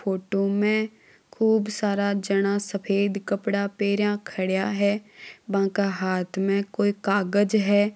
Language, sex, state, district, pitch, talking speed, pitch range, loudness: Marwari, female, Rajasthan, Nagaur, 200 Hz, 120 wpm, 195-205 Hz, -24 LUFS